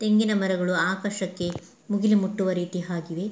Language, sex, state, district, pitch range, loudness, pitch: Kannada, female, Karnataka, Mysore, 180-205 Hz, -25 LUFS, 190 Hz